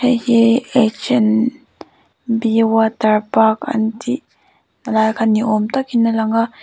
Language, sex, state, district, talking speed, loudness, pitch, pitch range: Mizo, female, Mizoram, Aizawl, 145 wpm, -16 LUFS, 230 Hz, 220-245 Hz